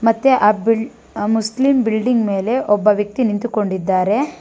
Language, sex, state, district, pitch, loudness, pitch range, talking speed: Kannada, female, Karnataka, Bangalore, 225 Hz, -17 LUFS, 210-245 Hz, 120 wpm